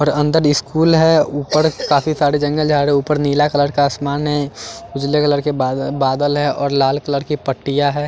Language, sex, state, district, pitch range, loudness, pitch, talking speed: Hindi, male, Chandigarh, Chandigarh, 140-150 Hz, -16 LUFS, 145 Hz, 200 wpm